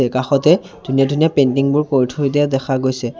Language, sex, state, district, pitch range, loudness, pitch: Assamese, male, Assam, Sonitpur, 130-145 Hz, -16 LUFS, 135 Hz